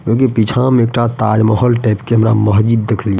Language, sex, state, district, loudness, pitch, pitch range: Maithili, male, Bihar, Madhepura, -13 LUFS, 115 Hz, 110-120 Hz